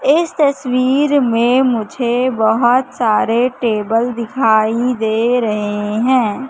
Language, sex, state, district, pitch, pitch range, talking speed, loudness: Hindi, female, Madhya Pradesh, Katni, 240 Hz, 225-260 Hz, 100 wpm, -15 LUFS